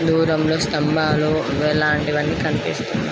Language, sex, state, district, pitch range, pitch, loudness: Telugu, female, Andhra Pradesh, Krishna, 150-160 Hz, 150 Hz, -19 LUFS